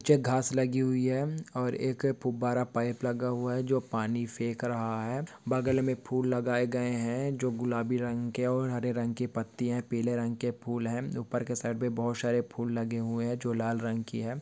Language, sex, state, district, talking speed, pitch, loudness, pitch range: Hindi, male, Maharashtra, Dhule, 210 wpm, 120 Hz, -31 LUFS, 115-125 Hz